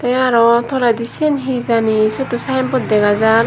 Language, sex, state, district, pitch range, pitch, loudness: Chakma, female, Tripura, Dhalai, 225-260 Hz, 240 Hz, -15 LUFS